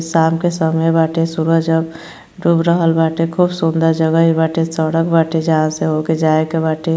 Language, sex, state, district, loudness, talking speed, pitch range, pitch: Bhojpuri, female, Uttar Pradesh, Gorakhpur, -15 LUFS, 170 wpm, 160-165 Hz, 165 Hz